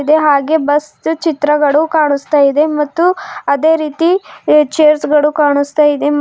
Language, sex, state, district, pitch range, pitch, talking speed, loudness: Kannada, female, Karnataka, Bidar, 290-320 Hz, 300 Hz, 125 wpm, -12 LUFS